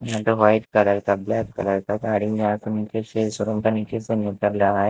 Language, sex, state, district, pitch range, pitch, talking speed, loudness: Hindi, male, Himachal Pradesh, Shimla, 105-110 Hz, 105 Hz, 220 wpm, -22 LUFS